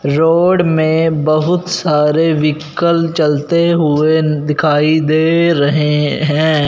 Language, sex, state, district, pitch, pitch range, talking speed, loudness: Hindi, male, Punjab, Fazilka, 155 Hz, 150-165 Hz, 100 wpm, -13 LUFS